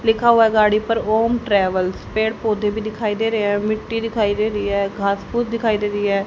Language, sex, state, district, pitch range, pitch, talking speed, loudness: Hindi, female, Haryana, Jhajjar, 205-225 Hz, 215 Hz, 230 wpm, -19 LUFS